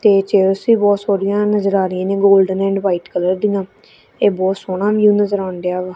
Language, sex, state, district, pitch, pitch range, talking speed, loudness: Punjabi, female, Punjab, Kapurthala, 195 Hz, 190-205 Hz, 210 wpm, -16 LUFS